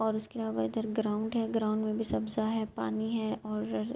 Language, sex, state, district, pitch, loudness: Urdu, female, Andhra Pradesh, Anantapur, 215 Hz, -33 LUFS